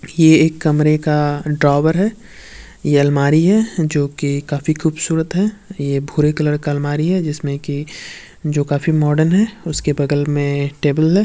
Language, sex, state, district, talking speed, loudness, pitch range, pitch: Hindi, male, Uttar Pradesh, Varanasi, 160 wpm, -16 LUFS, 145-160 Hz, 150 Hz